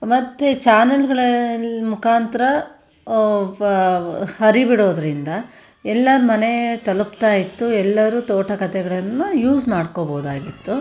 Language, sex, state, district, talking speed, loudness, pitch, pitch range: Kannada, female, Karnataka, Shimoga, 90 wpm, -18 LUFS, 220 Hz, 195-240 Hz